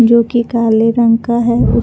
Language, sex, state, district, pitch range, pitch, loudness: Hindi, female, Jharkhand, Palamu, 230-235 Hz, 235 Hz, -12 LUFS